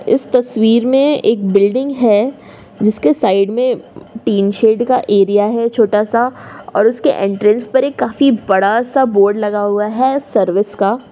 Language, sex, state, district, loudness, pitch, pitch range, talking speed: Hindi, female, Uttar Pradesh, Jyotiba Phule Nagar, -14 LUFS, 220 Hz, 205-255 Hz, 160 wpm